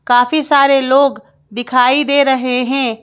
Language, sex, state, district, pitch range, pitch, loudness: Hindi, female, Madhya Pradesh, Bhopal, 245-275 Hz, 260 Hz, -12 LUFS